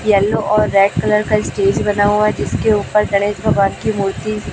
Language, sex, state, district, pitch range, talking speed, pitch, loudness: Hindi, male, Chhattisgarh, Raipur, 195-210 Hz, 200 wpm, 205 Hz, -15 LUFS